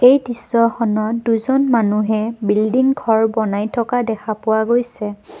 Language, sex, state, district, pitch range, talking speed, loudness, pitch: Assamese, female, Assam, Kamrup Metropolitan, 215-240 Hz, 120 wpm, -17 LUFS, 230 Hz